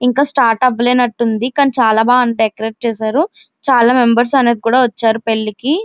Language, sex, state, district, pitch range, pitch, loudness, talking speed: Telugu, female, Andhra Pradesh, Visakhapatnam, 225-255 Hz, 245 Hz, -13 LUFS, 125 wpm